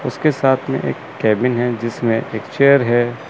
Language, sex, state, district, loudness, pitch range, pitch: Hindi, male, Chandigarh, Chandigarh, -17 LUFS, 120-135 Hz, 125 Hz